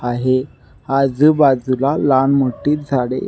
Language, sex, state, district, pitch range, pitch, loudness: Marathi, male, Maharashtra, Nagpur, 130-140 Hz, 135 Hz, -16 LUFS